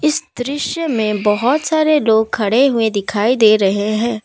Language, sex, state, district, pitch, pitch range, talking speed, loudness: Hindi, female, Assam, Kamrup Metropolitan, 230 Hz, 215-290 Hz, 170 wpm, -15 LUFS